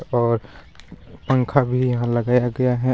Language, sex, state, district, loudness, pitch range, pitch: Hindi, female, Jharkhand, Garhwa, -20 LUFS, 120-130 Hz, 125 Hz